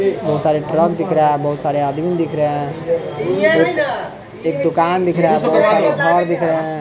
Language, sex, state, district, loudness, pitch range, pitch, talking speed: Hindi, male, Bihar, West Champaran, -16 LUFS, 150-170 Hz, 160 Hz, 200 wpm